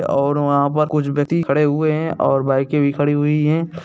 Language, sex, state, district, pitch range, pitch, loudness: Hindi, male, Bihar, Gaya, 140-155 Hz, 145 Hz, -18 LUFS